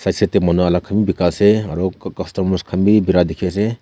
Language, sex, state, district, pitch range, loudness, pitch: Nagamese, male, Nagaland, Kohima, 90-100 Hz, -17 LUFS, 95 Hz